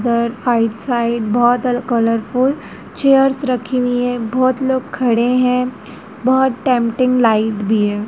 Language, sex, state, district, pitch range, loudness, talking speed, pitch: Hindi, female, Madhya Pradesh, Dhar, 230-255 Hz, -16 LUFS, 120 wpm, 245 Hz